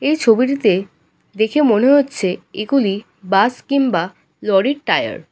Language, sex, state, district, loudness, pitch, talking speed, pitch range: Bengali, female, West Bengal, Kolkata, -16 LUFS, 220 Hz, 125 wpm, 190-275 Hz